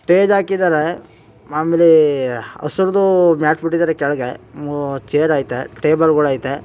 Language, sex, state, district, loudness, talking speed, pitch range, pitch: Kannada, male, Karnataka, Mysore, -16 LUFS, 100 wpm, 135-170 Hz, 150 Hz